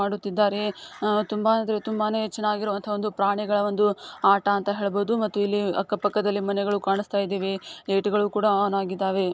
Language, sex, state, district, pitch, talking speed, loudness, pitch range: Kannada, female, Karnataka, Dakshina Kannada, 205 Hz, 150 wpm, -25 LUFS, 200-210 Hz